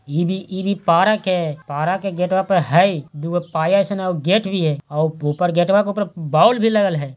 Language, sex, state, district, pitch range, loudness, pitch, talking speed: Hindi, male, Bihar, Jahanabad, 155-195 Hz, -18 LUFS, 180 Hz, 215 wpm